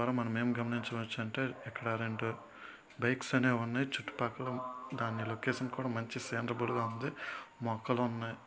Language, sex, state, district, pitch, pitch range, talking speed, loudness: Telugu, male, Andhra Pradesh, Srikakulam, 120 Hz, 115-125 Hz, 125 wpm, -36 LUFS